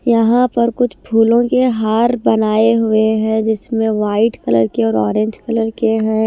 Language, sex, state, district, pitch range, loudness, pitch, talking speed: Hindi, female, Himachal Pradesh, Shimla, 215-235 Hz, -15 LUFS, 225 Hz, 170 wpm